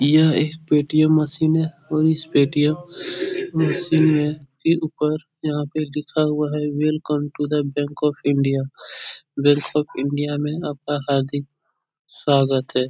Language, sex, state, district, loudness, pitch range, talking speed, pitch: Hindi, male, Uttar Pradesh, Etah, -21 LUFS, 145-155 Hz, 145 wpm, 150 Hz